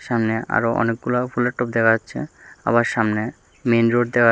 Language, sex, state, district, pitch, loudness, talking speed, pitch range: Bengali, male, Tripura, West Tripura, 115 Hz, -20 LUFS, 155 wpm, 115-120 Hz